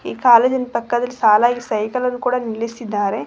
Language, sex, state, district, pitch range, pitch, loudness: Kannada, female, Karnataka, Koppal, 220-250 Hz, 240 Hz, -17 LUFS